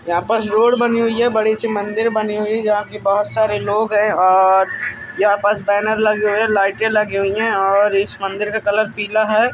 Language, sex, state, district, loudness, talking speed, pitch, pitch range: Hindi, male, Bihar, Araria, -16 LUFS, 225 wpm, 210 Hz, 205-220 Hz